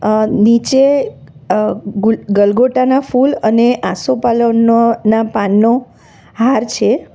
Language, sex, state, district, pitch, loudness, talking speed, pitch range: Gujarati, female, Gujarat, Valsad, 230 Hz, -13 LUFS, 110 wpm, 210-245 Hz